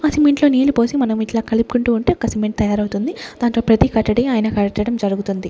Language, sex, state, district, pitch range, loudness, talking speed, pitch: Telugu, female, Andhra Pradesh, Sri Satya Sai, 210-245 Hz, -17 LUFS, 195 wpm, 225 Hz